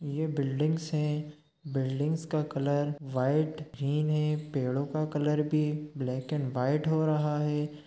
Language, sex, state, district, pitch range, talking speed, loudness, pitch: Hindi, male, Chhattisgarh, Sukma, 140-155 Hz, 145 wpm, -30 LUFS, 150 Hz